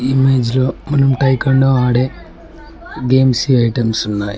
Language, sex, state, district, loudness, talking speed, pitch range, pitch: Telugu, male, Telangana, Mahabubabad, -14 LUFS, 95 wpm, 120-135 Hz, 130 Hz